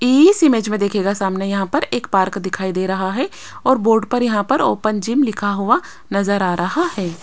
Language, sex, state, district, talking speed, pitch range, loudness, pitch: Hindi, female, Rajasthan, Jaipur, 215 wpm, 195-260 Hz, -18 LUFS, 205 Hz